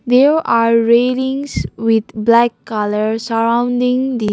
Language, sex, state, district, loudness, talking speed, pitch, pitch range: English, female, Nagaland, Kohima, -15 LUFS, 125 wpm, 235 Hz, 225-250 Hz